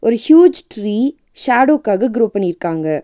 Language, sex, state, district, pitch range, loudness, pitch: Tamil, female, Tamil Nadu, Nilgiris, 200-280 Hz, -14 LUFS, 230 Hz